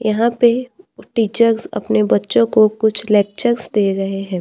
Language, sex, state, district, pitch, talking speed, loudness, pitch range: Hindi, female, Maharashtra, Gondia, 220 Hz, 150 wpm, -16 LUFS, 200-235 Hz